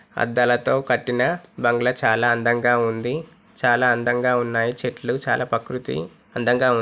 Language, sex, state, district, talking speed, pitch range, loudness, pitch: Telugu, male, Andhra Pradesh, Chittoor, 130 wpm, 120-125 Hz, -21 LUFS, 120 Hz